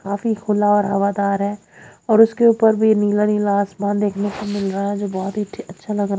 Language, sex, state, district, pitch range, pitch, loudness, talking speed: Hindi, female, Haryana, Jhajjar, 200-210 Hz, 205 Hz, -18 LUFS, 220 wpm